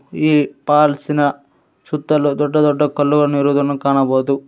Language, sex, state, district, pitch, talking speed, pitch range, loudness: Kannada, male, Karnataka, Koppal, 145 Hz, 120 wpm, 140-150 Hz, -16 LUFS